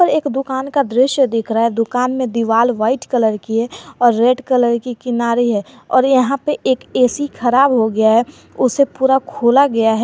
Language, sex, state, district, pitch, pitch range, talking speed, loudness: Hindi, female, Jharkhand, Garhwa, 250 Hz, 230-265 Hz, 210 wpm, -15 LUFS